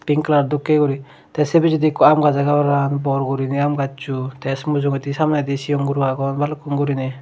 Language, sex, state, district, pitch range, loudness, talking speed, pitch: Chakma, male, Tripura, Dhalai, 135-150 Hz, -18 LUFS, 210 wpm, 140 Hz